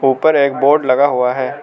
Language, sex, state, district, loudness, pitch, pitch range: Hindi, male, Arunachal Pradesh, Lower Dibang Valley, -13 LUFS, 140 Hz, 130-145 Hz